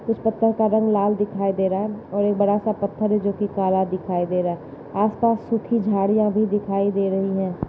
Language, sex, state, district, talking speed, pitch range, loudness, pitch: Hindi, female, Uttar Pradesh, Jalaun, 225 wpm, 195-215 Hz, -22 LUFS, 205 Hz